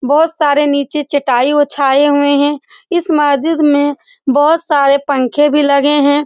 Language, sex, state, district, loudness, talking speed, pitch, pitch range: Hindi, female, Bihar, Saran, -12 LUFS, 155 wpm, 290 Hz, 280-300 Hz